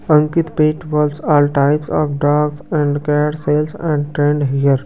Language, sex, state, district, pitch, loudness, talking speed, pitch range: Hindi, male, Bihar, Kaimur, 150 Hz, -16 LUFS, 170 wpm, 145-150 Hz